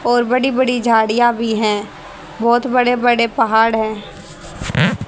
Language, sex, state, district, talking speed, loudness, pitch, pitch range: Hindi, female, Haryana, Charkhi Dadri, 130 wpm, -15 LUFS, 235 Hz, 220-245 Hz